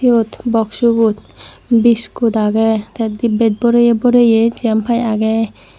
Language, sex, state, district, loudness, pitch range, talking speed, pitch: Chakma, female, Tripura, Dhalai, -14 LUFS, 220-235 Hz, 105 wpm, 230 Hz